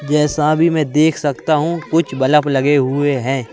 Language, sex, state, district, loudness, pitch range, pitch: Hindi, male, Madhya Pradesh, Bhopal, -15 LUFS, 140-155 Hz, 150 Hz